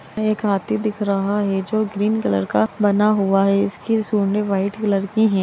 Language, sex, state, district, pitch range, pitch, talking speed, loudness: Magahi, female, Bihar, Gaya, 195-215 Hz, 205 Hz, 200 wpm, -19 LUFS